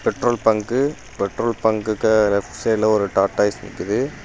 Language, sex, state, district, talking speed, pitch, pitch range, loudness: Tamil, male, Tamil Nadu, Kanyakumari, 140 wpm, 110 Hz, 100-115 Hz, -20 LUFS